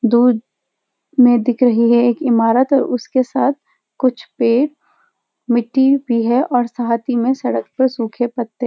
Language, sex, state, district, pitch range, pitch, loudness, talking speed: Hindi, female, Uttarakhand, Uttarkashi, 235-260 Hz, 245 Hz, -16 LUFS, 160 wpm